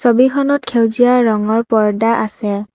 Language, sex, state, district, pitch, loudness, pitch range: Assamese, female, Assam, Kamrup Metropolitan, 230 Hz, -14 LUFS, 215-245 Hz